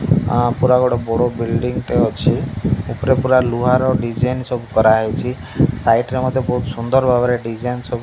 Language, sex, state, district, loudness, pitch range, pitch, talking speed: Odia, male, Odisha, Malkangiri, -17 LUFS, 115-125 Hz, 125 Hz, 165 wpm